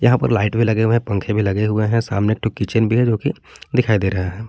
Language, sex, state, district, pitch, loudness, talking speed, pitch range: Hindi, male, Jharkhand, Palamu, 110 Hz, -18 LUFS, 305 wpm, 105-115 Hz